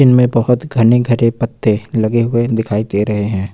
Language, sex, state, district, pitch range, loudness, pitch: Hindi, male, Uttar Pradesh, Lucknow, 110-120 Hz, -14 LUFS, 115 Hz